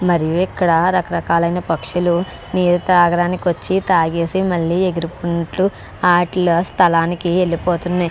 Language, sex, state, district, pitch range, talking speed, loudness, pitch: Telugu, female, Andhra Pradesh, Krishna, 170-180 Hz, 90 wpm, -17 LUFS, 175 Hz